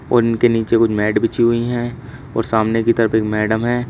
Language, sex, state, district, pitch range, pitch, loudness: Hindi, male, Uttar Pradesh, Shamli, 110-120 Hz, 115 Hz, -17 LUFS